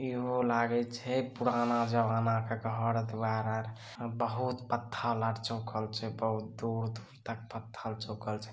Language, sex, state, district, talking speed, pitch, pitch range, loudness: Maithili, male, Bihar, Samastipur, 135 wpm, 115 Hz, 110-120 Hz, -34 LUFS